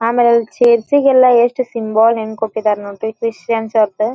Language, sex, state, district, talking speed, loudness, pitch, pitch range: Kannada, female, Karnataka, Dharwad, 160 wpm, -14 LUFS, 230 Hz, 220-240 Hz